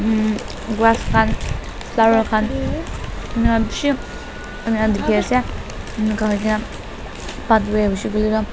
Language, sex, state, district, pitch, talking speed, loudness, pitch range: Nagamese, female, Nagaland, Dimapur, 220 Hz, 105 wpm, -19 LUFS, 215-225 Hz